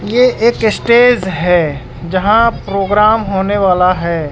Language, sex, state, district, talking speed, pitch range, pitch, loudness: Hindi, male, Bihar, West Champaran, 125 wpm, 180-225 Hz, 195 Hz, -12 LUFS